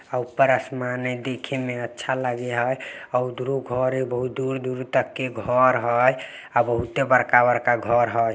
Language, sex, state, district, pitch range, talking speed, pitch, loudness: Maithili, male, Bihar, Samastipur, 120-130 Hz, 170 wpm, 125 Hz, -23 LUFS